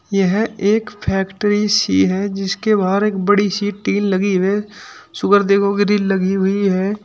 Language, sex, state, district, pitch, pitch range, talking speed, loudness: Hindi, male, Uttar Pradesh, Shamli, 200 Hz, 195-205 Hz, 155 wpm, -17 LUFS